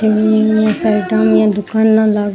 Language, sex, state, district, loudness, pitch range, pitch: Rajasthani, female, Rajasthan, Churu, -13 LUFS, 205-220 Hz, 215 Hz